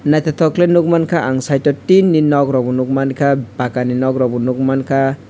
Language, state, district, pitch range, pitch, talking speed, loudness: Kokborok, Tripura, West Tripura, 130-155 Hz, 135 Hz, 160 wpm, -15 LUFS